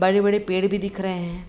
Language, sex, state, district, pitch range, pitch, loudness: Hindi, female, Bihar, Begusarai, 185-200 Hz, 190 Hz, -23 LUFS